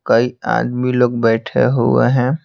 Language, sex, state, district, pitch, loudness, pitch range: Hindi, male, Bihar, Patna, 125 Hz, -16 LUFS, 120-125 Hz